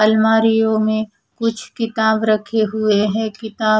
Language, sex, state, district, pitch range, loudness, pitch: Hindi, female, Odisha, Khordha, 215-225 Hz, -17 LUFS, 220 Hz